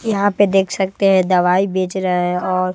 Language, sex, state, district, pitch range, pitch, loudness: Hindi, male, Bihar, West Champaran, 185-195 Hz, 190 Hz, -16 LUFS